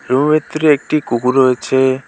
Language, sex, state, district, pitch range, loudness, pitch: Bengali, male, West Bengal, Alipurduar, 130-150 Hz, -14 LUFS, 135 Hz